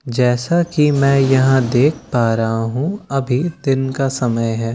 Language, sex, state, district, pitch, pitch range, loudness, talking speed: Hindi, male, Bihar, Katihar, 135 Hz, 120-145 Hz, -16 LUFS, 175 wpm